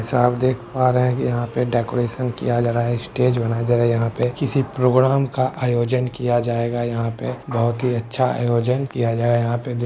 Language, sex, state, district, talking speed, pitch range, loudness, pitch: Maithili, male, Bihar, Begusarai, 230 wpm, 120-125 Hz, -20 LUFS, 120 Hz